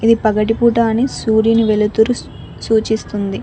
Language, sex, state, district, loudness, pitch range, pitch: Telugu, female, Telangana, Mahabubabad, -15 LUFS, 215-230 Hz, 220 Hz